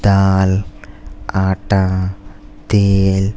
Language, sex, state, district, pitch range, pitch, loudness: Bhojpuri, male, Uttar Pradesh, Deoria, 95-100 Hz, 95 Hz, -16 LUFS